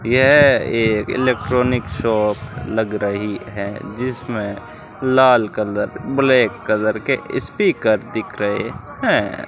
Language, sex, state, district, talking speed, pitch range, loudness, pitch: Hindi, male, Rajasthan, Bikaner, 115 wpm, 105-125 Hz, -18 LUFS, 115 Hz